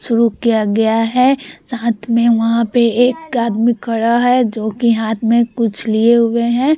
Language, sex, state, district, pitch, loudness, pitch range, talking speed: Hindi, female, Bihar, Vaishali, 235 Hz, -14 LUFS, 225-240 Hz, 175 wpm